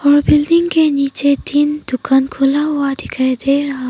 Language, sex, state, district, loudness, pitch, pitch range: Hindi, female, Arunachal Pradesh, Papum Pare, -15 LUFS, 280 Hz, 270-295 Hz